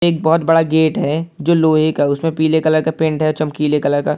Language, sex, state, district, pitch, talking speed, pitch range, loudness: Hindi, male, Bihar, Purnia, 160 Hz, 260 wpm, 155-160 Hz, -15 LUFS